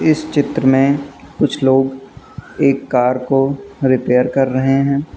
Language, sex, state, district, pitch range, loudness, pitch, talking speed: Hindi, male, Uttar Pradesh, Lucknow, 130-140 Hz, -15 LUFS, 135 Hz, 140 wpm